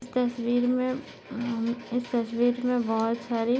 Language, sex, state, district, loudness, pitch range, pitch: Hindi, female, Maharashtra, Nagpur, -28 LUFS, 235-250 Hz, 245 Hz